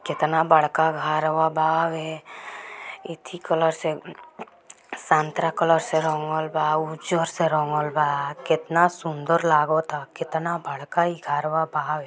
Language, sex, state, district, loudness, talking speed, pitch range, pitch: Bhojpuri, female, Bihar, Gopalganj, -23 LUFS, 130 wpm, 155-165 Hz, 160 Hz